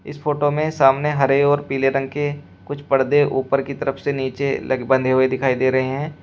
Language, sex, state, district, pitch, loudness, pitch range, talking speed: Hindi, male, Uttar Pradesh, Shamli, 135 Hz, -19 LUFS, 135-145 Hz, 220 wpm